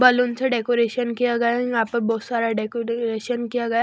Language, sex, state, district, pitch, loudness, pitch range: Hindi, female, Chhattisgarh, Raipur, 235 Hz, -22 LUFS, 230-245 Hz